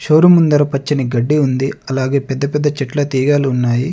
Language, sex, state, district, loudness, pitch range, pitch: Telugu, male, Telangana, Adilabad, -15 LUFS, 130-150 Hz, 140 Hz